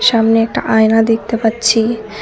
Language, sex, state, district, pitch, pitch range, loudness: Bengali, female, West Bengal, Cooch Behar, 225 Hz, 220-225 Hz, -13 LUFS